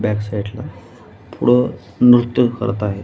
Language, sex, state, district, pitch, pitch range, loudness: Marathi, male, Maharashtra, Mumbai Suburban, 115 Hz, 105-120 Hz, -16 LUFS